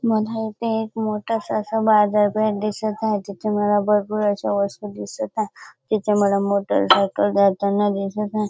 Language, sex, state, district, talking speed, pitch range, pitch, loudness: Marathi, female, Maharashtra, Dhule, 150 wpm, 200-215 Hz, 210 Hz, -21 LUFS